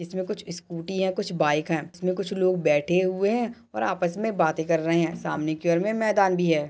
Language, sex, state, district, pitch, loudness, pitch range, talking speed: Hindi, female, Maharashtra, Nagpur, 180 Hz, -25 LUFS, 165-195 Hz, 235 wpm